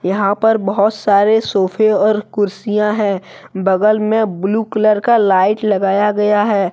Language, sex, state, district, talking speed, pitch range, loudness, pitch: Hindi, male, Jharkhand, Deoghar, 150 wpm, 195-215 Hz, -14 LUFS, 210 Hz